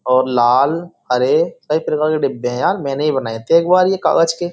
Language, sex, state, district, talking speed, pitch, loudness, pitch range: Hindi, male, Uttar Pradesh, Jyotiba Phule Nagar, 240 wpm, 155 Hz, -16 LUFS, 130-175 Hz